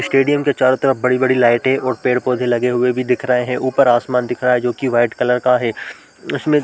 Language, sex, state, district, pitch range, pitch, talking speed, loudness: Hindi, male, Chhattisgarh, Balrampur, 125-130 Hz, 125 Hz, 245 wpm, -16 LUFS